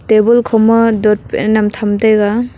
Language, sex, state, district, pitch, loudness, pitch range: Wancho, female, Arunachal Pradesh, Longding, 220 Hz, -12 LUFS, 210-230 Hz